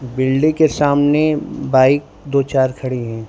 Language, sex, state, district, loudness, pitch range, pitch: Hindi, male, Gujarat, Valsad, -16 LUFS, 130-145 Hz, 135 Hz